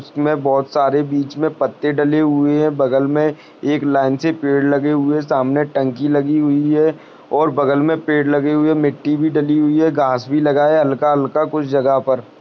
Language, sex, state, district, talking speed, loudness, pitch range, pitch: Hindi, male, Maharashtra, Aurangabad, 200 wpm, -16 LUFS, 140-150 Hz, 145 Hz